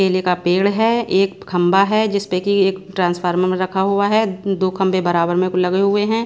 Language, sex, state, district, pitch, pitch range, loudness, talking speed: Hindi, female, Bihar, West Champaran, 190 Hz, 180-200 Hz, -17 LUFS, 220 wpm